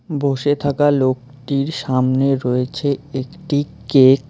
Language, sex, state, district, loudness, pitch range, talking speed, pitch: Bengali, male, West Bengal, Alipurduar, -18 LUFS, 130-145 Hz, 110 wpm, 140 Hz